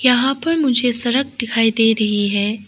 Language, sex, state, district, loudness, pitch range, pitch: Hindi, female, Arunachal Pradesh, Lower Dibang Valley, -17 LUFS, 215-260 Hz, 240 Hz